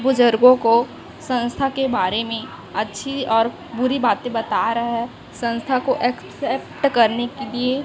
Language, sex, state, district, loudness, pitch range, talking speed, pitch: Hindi, female, Chhattisgarh, Raipur, -20 LUFS, 230-260 Hz, 145 wpm, 240 Hz